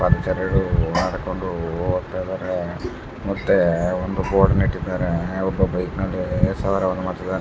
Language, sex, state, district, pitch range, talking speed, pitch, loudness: Kannada, male, Karnataka, Dharwad, 90-95 Hz, 105 wpm, 95 Hz, -22 LUFS